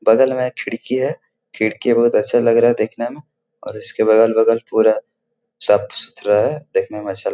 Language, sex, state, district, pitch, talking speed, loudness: Hindi, male, Bihar, Jahanabad, 120 Hz, 195 wpm, -17 LUFS